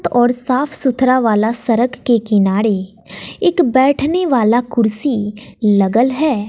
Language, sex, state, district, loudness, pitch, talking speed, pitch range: Hindi, female, Bihar, West Champaran, -15 LUFS, 240 Hz, 120 wpm, 215-265 Hz